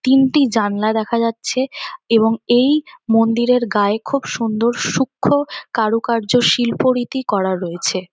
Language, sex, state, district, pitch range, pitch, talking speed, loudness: Bengali, female, West Bengal, North 24 Parganas, 220-265 Hz, 235 Hz, 120 wpm, -17 LUFS